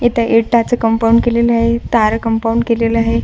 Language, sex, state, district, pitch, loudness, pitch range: Marathi, female, Maharashtra, Washim, 230 Hz, -14 LUFS, 230-235 Hz